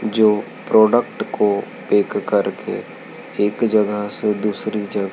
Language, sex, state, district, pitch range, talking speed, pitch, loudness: Hindi, male, Madhya Pradesh, Dhar, 105-110 Hz, 130 wpm, 105 Hz, -19 LUFS